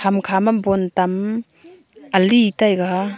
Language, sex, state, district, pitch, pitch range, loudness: Wancho, female, Arunachal Pradesh, Longding, 195 Hz, 190-225 Hz, -18 LUFS